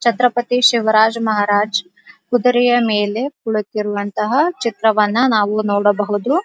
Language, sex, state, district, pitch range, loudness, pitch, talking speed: Kannada, female, Karnataka, Dharwad, 205-245 Hz, -16 LUFS, 220 Hz, 85 wpm